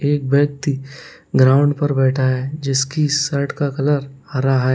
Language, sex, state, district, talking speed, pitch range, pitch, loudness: Hindi, male, Uttar Pradesh, Lalitpur, 150 wpm, 135-145 Hz, 140 Hz, -18 LUFS